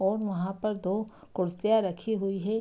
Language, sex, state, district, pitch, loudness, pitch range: Hindi, female, Bihar, Madhepura, 200 Hz, -30 LUFS, 190-215 Hz